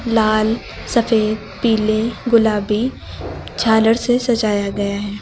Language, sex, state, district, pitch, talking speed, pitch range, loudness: Hindi, female, Uttar Pradesh, Lucknow, 220 Hz, 105 wpm, 215-230 Hz, -17 LUFS